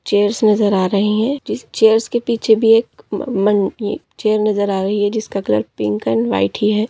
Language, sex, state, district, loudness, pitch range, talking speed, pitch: Hindi, female, Maharashtra, Solapur, -16 LUFS, 195-220 Hz, 210 wpm, 210 Hz